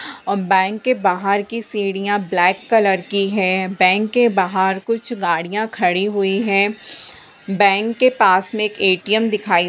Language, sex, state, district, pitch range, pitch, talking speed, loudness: Hindi, female, Bihar, Bhagalpur, 190-215 Hz, 200 Hz, 155 wpm, -17 LUFS